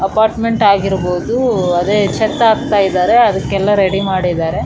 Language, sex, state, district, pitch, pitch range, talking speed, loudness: Kannada, female, Karnataka, Raichur, 195 Hz, 190-220 Hz, 105 wpm, -13 LUFS